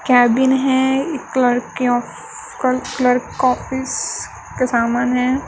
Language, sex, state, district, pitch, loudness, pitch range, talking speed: Hindi, female, Maharashtra, Gondia, 255 Hz, -18 LUFS, 245-260 Hz, 110 wpm